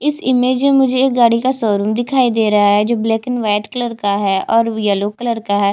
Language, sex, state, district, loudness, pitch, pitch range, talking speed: Hindi, female, Chhattisgarh, Jashpur, -15 LUFS, 230 Hz, 205-250 Hz, 250 wpm